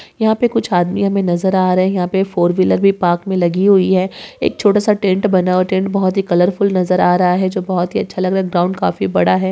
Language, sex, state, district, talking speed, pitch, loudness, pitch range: Hindi, female, Maharashtra, Chandrapur, 270 wpm, 185 Hz, -15 LUFS, 180-195 Hz